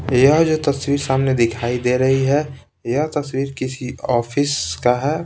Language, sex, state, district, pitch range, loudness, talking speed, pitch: Hindi, male, Bihar, Patna, 125-145 Hz, -19 LUFS, 160 wpm, 135 Hz